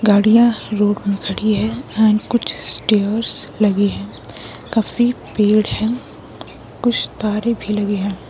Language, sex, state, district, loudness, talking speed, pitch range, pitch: Hindi, female, Himachal Pradesh, Shimla, -17 LUFS, 130 wpm, 205-225 Hz, 210 Hz